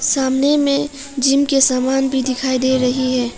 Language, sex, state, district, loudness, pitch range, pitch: Hindi, female, Arunachal Pradesh, Papum Pare, -16 LUFS, 255-275 Hz, 265 Hz